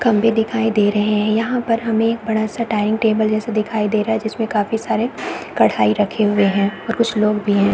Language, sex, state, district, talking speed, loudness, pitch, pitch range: Hindi, female, Chhattisgarh, Bilaspur, 250 wpm, -18 LUFS, 220 Hz, 210-225 Hz